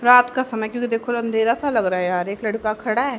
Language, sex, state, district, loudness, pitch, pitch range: Hindi, female, Haryana, Jhajjar, -21 LUFS, 230 Hz, 215-245 Hz